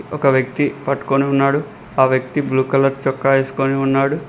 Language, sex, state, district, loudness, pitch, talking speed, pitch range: Telugu, male, Telangana, Mahabubabad, -17 LUFS, 135 Hz, 155 wpm, 135-140 Hz